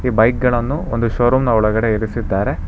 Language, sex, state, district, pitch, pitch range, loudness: Kannada, male, Karnataka, Bangalore, 115 Hz, 110-125 Hz, -17 LUFS